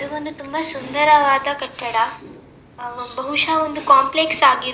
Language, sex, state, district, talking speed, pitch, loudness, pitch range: Kannada, female, Karnataka, Dakshina Kannada, 115 wpm, 280 Hz, -17 LUFS, 260-300 Hz